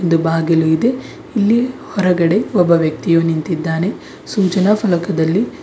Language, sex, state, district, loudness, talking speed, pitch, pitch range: Kannada, female, Karnataka, Bidar, -16 LUFS, 105 wpm, 175 Hz, 165-205 Hz